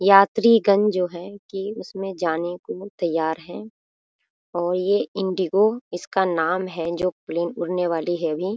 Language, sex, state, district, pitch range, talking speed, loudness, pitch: Hindi, female, Bihar, Muzaffarpur, 170-200 Hz, 155 wpm, -22 LUFS, 185 Hz